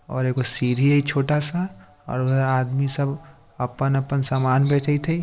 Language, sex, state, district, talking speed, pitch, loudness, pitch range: Bajjika, male, Bihar, Vaishali, 160 wpm, 135 Hz, -18 LUFS, 130-145 Hz